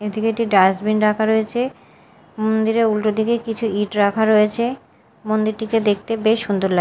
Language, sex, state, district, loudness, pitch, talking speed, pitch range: Bengali, female, Odisha, Malkangiri, -19 LUFS, 220 Hz, 150 wpm, 210-225 Hz